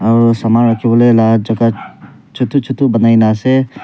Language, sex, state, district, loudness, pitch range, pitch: Nagamese, male, Nagaland, Kohima, -12 LUFS, 115-125 Hz, 115 Hz